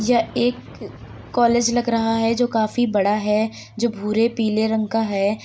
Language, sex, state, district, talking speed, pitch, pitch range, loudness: Hindi, female, Uttar Pradesh, Deoria, 175 wpm, 225 Hz, 215-235 Hz, -20 LUFS